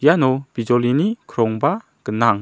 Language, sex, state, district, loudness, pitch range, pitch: Garo, male, Meghalaya, South Garo Hills, -19 LUFS, 115-150 Hz, 130 Hz